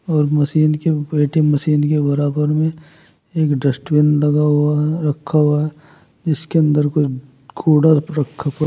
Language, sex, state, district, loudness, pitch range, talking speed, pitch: Hindi, male, Uttar Pradesh, Saharanpur, -17 LUFS, 145-155 Hz, 150 wpm, 150 Hz